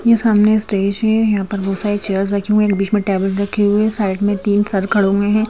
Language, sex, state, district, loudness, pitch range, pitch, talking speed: Hindi, female, Madhya Pradesh, Bhopal, -16 LUFS, 195-210 Hz, 205 Hz, 285 wpm